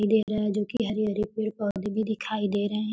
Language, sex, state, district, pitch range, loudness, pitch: Hindi, female, Bihar, Gopalganj, 205-215 Hz, -28 LUFS, 215 Hz